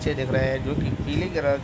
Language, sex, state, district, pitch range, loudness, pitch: Hindi, male, Bihar, Sitamarhi, 130-140 Hz, -25 LUFS, 130 Hz